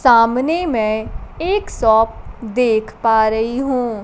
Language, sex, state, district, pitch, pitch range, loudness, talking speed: Hindi, female, Bihar, Kaimur, 230 Hz, 220-260 Hz, -17 LUFS, 120 wpm